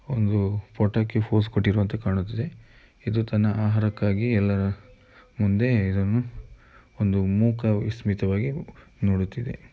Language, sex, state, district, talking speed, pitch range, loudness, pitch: Kannada, male, Karnataka, Mysore, 85 wpm, 100-115 Hz, -25 LUFS, 105 Hz